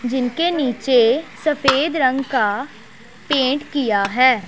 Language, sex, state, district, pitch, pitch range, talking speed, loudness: Hindi, female, Punjab, Pathankot, 260 Hz, 245-280 Hz, 105 wpm, -18 LUFS